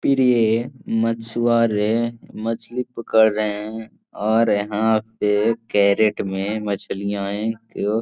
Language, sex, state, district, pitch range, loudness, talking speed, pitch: Hindi, male, Bihar, Jahanabad, 105-115 Hz, -21 LUFS, 105 wpm, 110 Hz